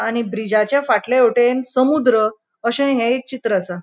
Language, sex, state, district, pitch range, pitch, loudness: Konkani, female, Goa, North and South Goa, 215-255 Hz, 240 Hz, -17 LUFS